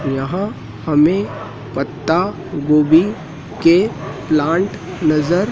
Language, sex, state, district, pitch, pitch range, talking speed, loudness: Hindi, male, Madhya Pradesh, Dhar, 160 Hz, 150-180 Hz, 65 wpm, -17 LUFS